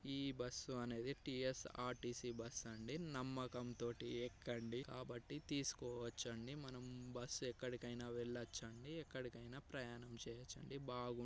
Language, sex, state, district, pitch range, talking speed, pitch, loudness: Telugu, male, Telangana, Nalgonda, 120-130 Hz, 110 wpm, 125 Hz, -49 LUFS